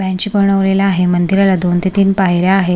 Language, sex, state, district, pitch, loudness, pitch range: Marathi, female, Maharashtra, Sindhudurg, 190 Hz, -13 LUFS, 180-195 Hz